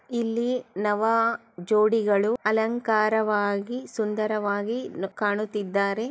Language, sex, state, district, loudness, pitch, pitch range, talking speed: Kannada, female, Karnataka, Chamarajanagar, -25 LUFS, 215 Hz, 205-230 Hz, 80 wpm